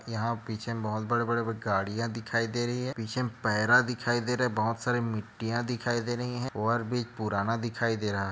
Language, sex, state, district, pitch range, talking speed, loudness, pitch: Hindi, male, Chhattisgarh, Raigarh, 110-120 Hz, 230 wpm, -30 LUFS, 115 Hz